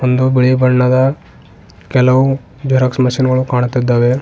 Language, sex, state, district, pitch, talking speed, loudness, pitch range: Kannada, male, Karnataka, Bidar, 130 Hz, 115 wpm, -13 LUFS, 125-130 Hz